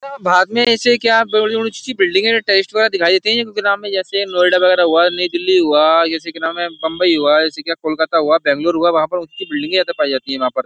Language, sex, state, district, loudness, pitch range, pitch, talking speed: Hindi, male, Uttar Pradesh, Jyotiba Phule Nagar, -15 LUFS, 165-220 Hz, 180 Hz, 230 wpm